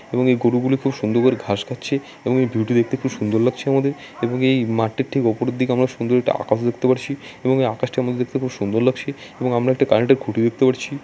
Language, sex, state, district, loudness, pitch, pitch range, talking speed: Bengali, male, West Bengal, Jalpaiguri, -20 LUFS, 125 Hz, 120-130 Hz, 250 wpm